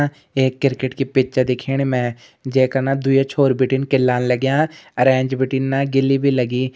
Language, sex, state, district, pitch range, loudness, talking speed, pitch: Garhwali, male, Uttarakhand, Uttarkashi, 130-135 Hz, -18 LUFS, 185 wpm, 135 Hz